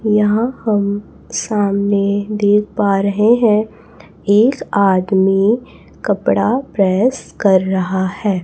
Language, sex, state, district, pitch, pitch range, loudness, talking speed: Hindi, female, Chhattisgarh, Raipur, 205 Hz, 195-220 Hz, -15 LUFS, 100 wpm